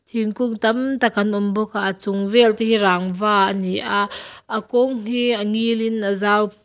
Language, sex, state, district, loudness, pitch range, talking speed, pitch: Mizo, female, Mizoram, Aizawl, -19 LUFS, 200-230 Hz, 205 wpm, 215 Hz